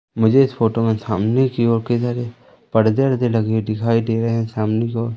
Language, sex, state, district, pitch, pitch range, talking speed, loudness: Hindi, male, Madhya Pradesh, Umaria, 115 Hz, 110-120 Hz, 220 wpm, -18 LUFS